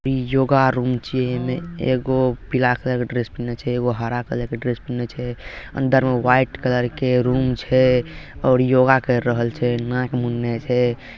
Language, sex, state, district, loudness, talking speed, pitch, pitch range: Maithili, male, Bihar, Madhepura, -20 LUFS, 190 wpm, 125 Hz, 120-130 Hz